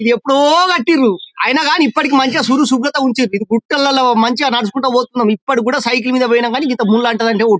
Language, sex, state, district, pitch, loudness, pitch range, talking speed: Telugu, male, Telangana, Karimnagar, 255 Hz, -13 LUFS, 235-280 Hz, 180 wpm